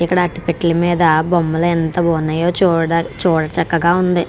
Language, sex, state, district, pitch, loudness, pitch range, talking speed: Telugu, female, Andhra Pradesh, Krishna, 170 Hz, -16 LUFS, 165-175 Hz, 140 wpm